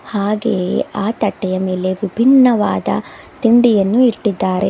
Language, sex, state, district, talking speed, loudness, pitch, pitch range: Kannada, female, Karnataka, Bidar, 90 wpm, -15 LUFS, 210 Hz, 190-230 Hz